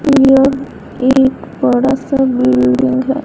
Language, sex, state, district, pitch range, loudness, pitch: Hindi, female, Bihar, West Champaran, 250-275 Hz, -12 LUFS, 270 Hz